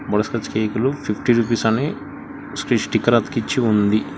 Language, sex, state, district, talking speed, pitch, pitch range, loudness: Telugu, male, Telangana, Hyderabad, 115 wpm, 110 Hz, 105-120 Hz, -20 LUFS